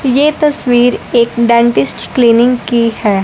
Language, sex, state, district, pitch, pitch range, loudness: Hindi, male, Punjab, Fazilka, 240 Hz, 235-250 Hz, -11 LUFS